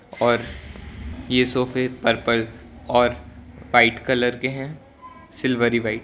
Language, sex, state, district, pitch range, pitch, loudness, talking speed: Hindi, male, Gujarat, Valsad, 90-125 Hz, 120 Hz, -21 LUFS, 120 wpm